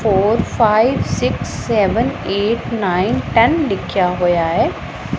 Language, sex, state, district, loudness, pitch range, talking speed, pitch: Punjabi, female, Punjab, Pathankot, -16 LUFS, 180-230 Hz, 115 wpm, 210 Hz